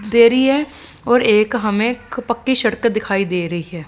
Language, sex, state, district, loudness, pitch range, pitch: Hindi, female, Punjab, Fazilka, -16 LUFS, 205-245 Hz, 230 Hz